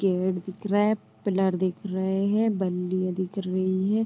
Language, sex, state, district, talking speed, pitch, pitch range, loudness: Hindi, female, Uttar Pradesh, Deoria, 175 wpm, 190 Hz, 185-200 Hz, -26 LUFS